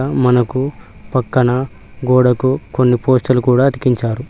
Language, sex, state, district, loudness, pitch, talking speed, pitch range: Telugu, male, Telangana, Mahabubabad, -15 LUFS, 125 Hz, 110 wpm, 125-130 Hz